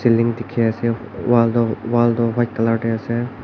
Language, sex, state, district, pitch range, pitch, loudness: Nagamese, male, Nagaland, Kohima, 115-120 Hz, 115 Hz, -19 LUFS